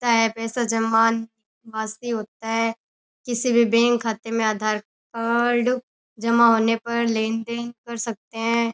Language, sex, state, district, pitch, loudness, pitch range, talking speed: Rajasthani, female, Rajasthan, Churu, 230 Hz, -22 LUFS, 225-235 Hz, 145 wpm